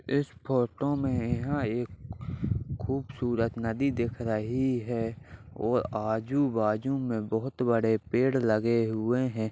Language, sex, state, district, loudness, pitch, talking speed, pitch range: Hindi, male, Uttar Pradesh, Ghazipur, -29 LUFS, 120 Hz, 120 wpm, 110-130 Hz